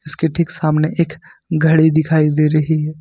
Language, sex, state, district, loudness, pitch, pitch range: Hindi, male, Jharkhand, Ranchi, -16 LUFS, 160 Hz, 155-160 Hz